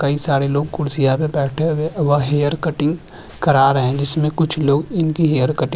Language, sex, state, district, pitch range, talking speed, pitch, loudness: Hindi, male, Uttarakhand, Tehri Garhwal, 140-155 Hz, 210 wpm, 145 Hz, -18 LUFS